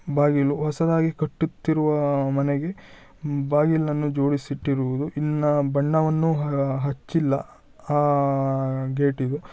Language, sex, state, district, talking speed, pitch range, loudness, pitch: Kannada, male, Karnataka, Shimoga, 80 wpm, 140-150 Hz, -23 LUFS, 145 Hz